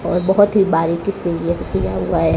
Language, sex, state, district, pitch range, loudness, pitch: Hindi, male, Rajasthan, Bikaner, 165-195 Hz, -17 LUFS, 170 Hz